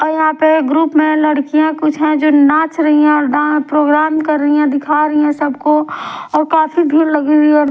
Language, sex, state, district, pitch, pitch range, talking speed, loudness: Hindi, female, Odisha, Sambalpur, 300 Hz, 295-310 Hz, 220 wpm, -12 LUFS